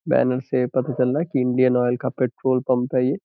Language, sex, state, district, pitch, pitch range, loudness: Hindi, male, Uttar Pradesh, Gorakhpur, 130 Hz, 125-130 Hz, -21 LUFS